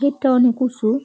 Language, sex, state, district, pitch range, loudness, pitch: Bengali, female, West Bengal, Jalpaiguri, 245-270 Hz, -17 LUFS, 255 Hz